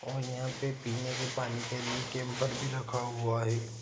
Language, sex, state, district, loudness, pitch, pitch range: Hindi, male, Andhra Pradesh, Anantapur, -34 LUFS, 125 Hz, 120-130 Hz